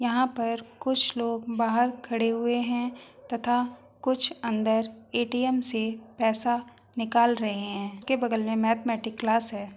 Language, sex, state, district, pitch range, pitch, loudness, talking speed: Hindi, female, Uttar Pradesh, Hamirpur, 225-245 Hz, 235 Hz, -27 LUFS, 140 wpm